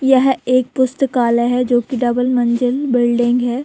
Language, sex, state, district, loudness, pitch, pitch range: Hindi, female, Bihar, Samastipur, -16 LUFS, 250 Hz, 240-260 Hz